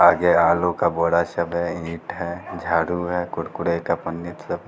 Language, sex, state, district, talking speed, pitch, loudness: Hindi, male, Bihar, Katihar, 190 wpm, 85 Hz, -22 LUFS